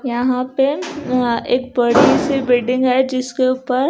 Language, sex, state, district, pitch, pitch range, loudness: Hindi, female, Punjab, Kapurthala, 255 Hz, 250-270 Hz, -17 LUFS